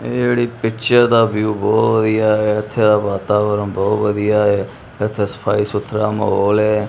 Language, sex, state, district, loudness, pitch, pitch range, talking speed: Punjabi, male, Punjab, Kapurthala, -16 LUFS, 105 Hz, 105-110 Hz, 165 wpm